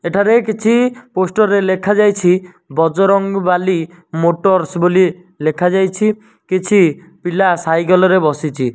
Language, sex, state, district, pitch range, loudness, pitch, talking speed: Odia, male, Odisha, Nuapada, 170-195 Hz, -14 LUFS, 185 Hz, 95 wpm